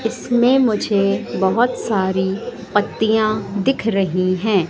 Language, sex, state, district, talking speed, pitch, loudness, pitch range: Hindi, female, Madhya Pradesh, Katni, 100 wpm, 215 Hz, -18 LUFS, 195-235 Hz